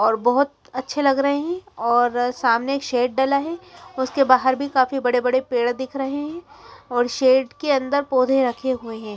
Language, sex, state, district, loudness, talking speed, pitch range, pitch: Hindi, female, Chandigarh, Chandigarh, -20 LUFS, 195 wpm, 245-280 Hz, 260 Hz